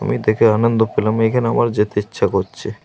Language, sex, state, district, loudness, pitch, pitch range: Bengali, male, Jharkhand, Jamtara, -17 LUFS, 110 Hz, 110-115 Hz